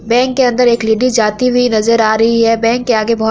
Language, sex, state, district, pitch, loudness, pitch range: Hindi, female, Bihar, Araria, 230 Hz, -12 LUFS, 220-245 Hz